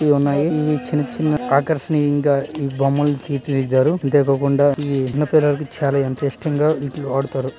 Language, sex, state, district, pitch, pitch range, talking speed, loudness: Telugu, male, Andhra Pradesh, Srikakulam, 145 Hz, 140-150 Hz, 165 wpm, -19 LUFS